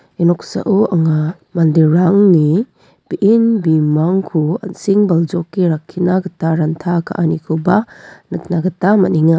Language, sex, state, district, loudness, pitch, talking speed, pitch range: Garo, female, Meghalaya, West Garo Hills, -14 LUFS, 175 Hz, 95 wpm, 160-190 Hz